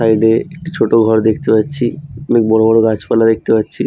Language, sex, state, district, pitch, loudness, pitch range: Bengali, male, West Bengal, Jhargram, 115 Hz, -13 LUFS, 110-120 Hz